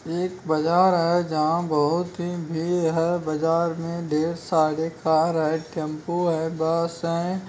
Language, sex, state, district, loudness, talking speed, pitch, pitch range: Hindi, male, Bihar, Jamui, -24 LUFS, 135 wpm, 165 Hz, 160-170 Hz